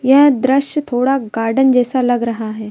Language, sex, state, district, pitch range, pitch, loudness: Hindi, female, Madhya Pradesh, Bhopal, 230-270 Hz, 255 Hz, -15 LUFS